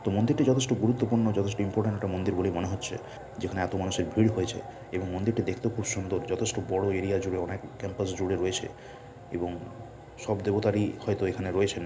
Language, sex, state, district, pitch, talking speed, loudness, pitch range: Bengali, male, West Bengal, Purulia, 100 Hz, 175 wpm, -29 LUFS, 95-110 Hz